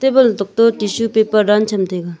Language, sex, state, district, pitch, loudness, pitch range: Wancho, female, Arunachal Pradesh, Longding, 215 Hz, -15 LUFS, 200-230 Hz